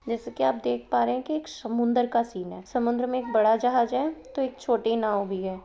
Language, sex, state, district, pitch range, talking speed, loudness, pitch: Hindi, female, Bihar, Purnia, 190-250 Hz, 265 wpm, -26 LUFS, 235 Hz